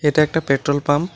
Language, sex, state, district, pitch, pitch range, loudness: Bengali, male, Tripura, West Tripura, 150 Hz, 145-155 Hz, -18 LUFS